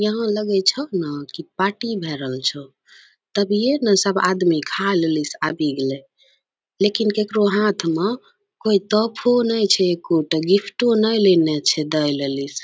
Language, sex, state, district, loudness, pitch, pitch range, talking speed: Angika, female, Bihar, Bhagalpur, -19 LUFS, 195 Hz, 155-215 Hz, 160 wpm